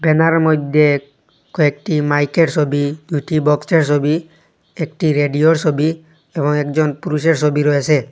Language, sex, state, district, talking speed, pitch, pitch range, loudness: Bengali, male, Assam, Hailakandi, 120 wpm, 150 Hz, 145-160 Hz, -16 LUFS